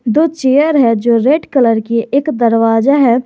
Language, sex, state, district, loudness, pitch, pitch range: Hindi, male, Jharkhand, Garhwa, -12 LUFS, 250 Hz, 230-285 Hz